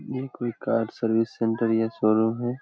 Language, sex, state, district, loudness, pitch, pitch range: Hindi, male, Jharkhand, Jamtara, -25 LUFS, 115 Hz, 115-120 Hz